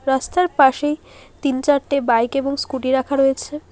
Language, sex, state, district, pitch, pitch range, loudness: Bengali, female, West Bengal, Alipurduar, 275 Hz, 265-290 Hz, -19 LUFS